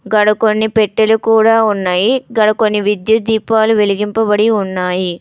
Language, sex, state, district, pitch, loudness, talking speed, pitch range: Telugu, female, Telangana, Hyderabad, 215 Hz, -13 LUFS, 125 wpm, 210-220 Hz